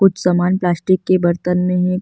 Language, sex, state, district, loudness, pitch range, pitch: Hindi, female, Delhi, New Delhi, -16 LUFS, 175-185 Hz, 180 Hz